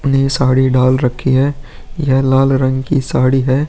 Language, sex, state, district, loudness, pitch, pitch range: Hindi, male, Bihar, Vaishali, -14 LUFS, 130 Hz, 130-135 Hz